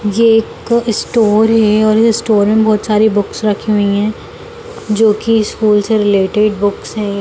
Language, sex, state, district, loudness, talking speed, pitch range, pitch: Hindi, female, Bihar, Jamui, -12 LUFS, 175 wpm, 210-225 Hz, 215 Hz